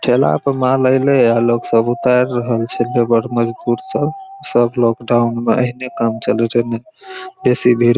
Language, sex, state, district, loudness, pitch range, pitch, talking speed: Maithili, male, Bihar, Araria, -16 LUFS, 115-130 Hz, 120 Hz, 180 wpm